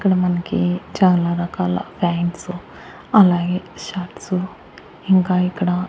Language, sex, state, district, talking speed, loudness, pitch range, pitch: Telugu, male, Andhra Pradesh, Annamaya, 90 wpm, -19 LUFS, 175-185 Hz, 180 Hz